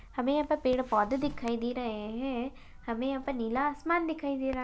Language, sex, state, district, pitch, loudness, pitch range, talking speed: Hindi, female, Maharashtra, Chandrapur, 265 Hz, -32 LUFS, 240-280 Hz, 220 wpm